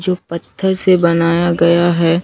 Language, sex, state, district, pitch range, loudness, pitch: Hindi, female, Bihar, Katihar, 170-180 Hz, -14 LUFS, 170 Hz